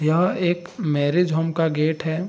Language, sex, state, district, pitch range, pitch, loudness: Hindi, male, Bihar, Saharsa, 155-175 Hz, 165 Hz, -22 LUFS